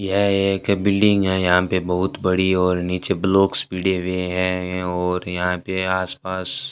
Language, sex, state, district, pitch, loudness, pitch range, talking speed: Hindi, male, Rajasthan, Bikaner, 95 Hz, -20 LUFS, 90-95 Hz, 170 wpm